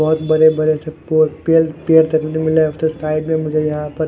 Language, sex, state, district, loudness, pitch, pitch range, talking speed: Hindi, male, Punjab, Fazilka, -16 LUFS, 155 Hz, 155-160 Hz, 190 wpm